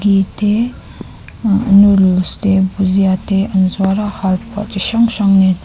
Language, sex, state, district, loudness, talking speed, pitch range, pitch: Mizo, female, Mizoram, Aizawl, -13 LUFS, 150 wpm, 190-205 Hz, 195 Hz